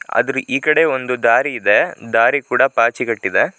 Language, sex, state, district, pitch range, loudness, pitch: Kannada, male, Karnataka, Shimoga, 120-135 Hz, -16 LUFS, 130 Hz